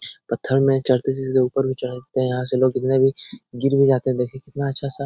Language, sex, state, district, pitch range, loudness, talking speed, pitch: Hindi, male, Bihar, Jahanabad, 130-135 Hz, -21 LUFS, 270 wpm, 130 Hz